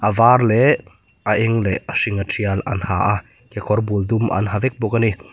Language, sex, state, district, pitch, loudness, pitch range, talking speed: Mizo, male, Mizoram, Aizawl, 105 Hz, -18 LUFS, 100-115 Hz, 225 wpm